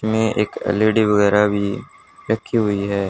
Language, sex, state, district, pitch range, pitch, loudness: Hindi, male, Haryana, Charkhi Dadri, 100-110 Hz, 105 Hz, -18 LUFS